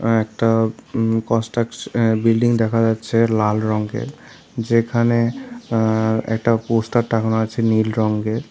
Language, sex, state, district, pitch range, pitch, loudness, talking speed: Bengali, male, Tripura, South Tripura, 110-115 Hz, 115 Hz, -19 LUFS, 125 wpm